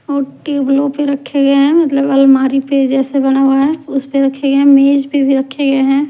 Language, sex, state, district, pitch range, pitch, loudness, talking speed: Hindi, male, Delhi, New Delhi, 270-280 Hz, 275 Hz, -12 LUFS, 205 wpm